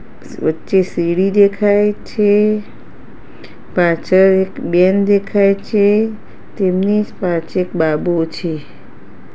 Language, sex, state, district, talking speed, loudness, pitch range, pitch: Gujarati, female, Gujarat, Gandhinagar, 90 wpm, -15 LUFS, 175-205 Hz, 190 Hz